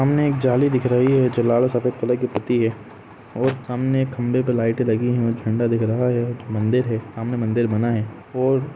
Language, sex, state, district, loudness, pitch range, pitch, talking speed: Hindi, male, Jharkhand, Sahebganj, -21 LUFS, 115-130 Hz, 120 Hz, 225 wpm